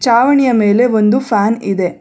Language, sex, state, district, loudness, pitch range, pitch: Kannada, female, Karnataka, Bangalore, -12 LUFS, 205-245 Hz, 225 Hz